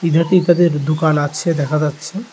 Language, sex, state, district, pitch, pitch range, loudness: Bengali, male, Tripura, West Tripura, 160 Hz, 150-175 Hz, -16 LUFS